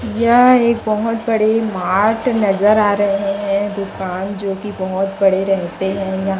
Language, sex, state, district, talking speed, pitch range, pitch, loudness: Hindi, female, Chhattisgarh, Raipur, 160 wpm, 195-220 Hz, 200 Hz, -16 LUFS